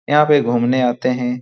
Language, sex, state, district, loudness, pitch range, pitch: Hindi, male, Bihar, Lakhisarai, -16 LUFS, 125-145 Hz, 125 Hz